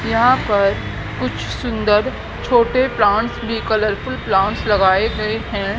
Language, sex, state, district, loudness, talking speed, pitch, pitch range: Hindi, female, Haryana, Jhajjar, -17 LUFS, 125 wpm, 210 Hz, 190-230 Hz